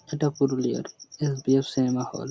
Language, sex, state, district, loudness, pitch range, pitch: Bengali, male, West Bengal, Purulia, -26 LUFS, 130-150 Hz, 135 Hz